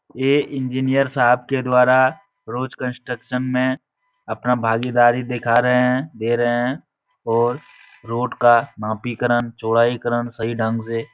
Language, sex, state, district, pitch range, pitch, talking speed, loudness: Hindi, male, Uttar Pradesh, Etah, 120-130 Hz, 125 Hz, 135 wpm, -19 LUFS